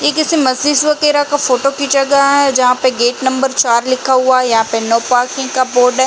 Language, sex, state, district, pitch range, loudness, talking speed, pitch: Hindi, female, Uttar Pradesh, Jalaun, 250-280 Hz, -12 LUFS, 235 wpm, 260 Hz